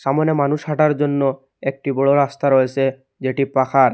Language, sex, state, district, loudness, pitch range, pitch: Bengali, male, Assam, Hailakandi, -18 LUFS, 135-145 Hz, 135 Hz